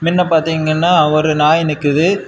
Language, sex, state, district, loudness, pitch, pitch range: Tamil, male, Tamil Nadu, Kanyakumari, -13 LUFS, 160 Hz, 155-170 Hz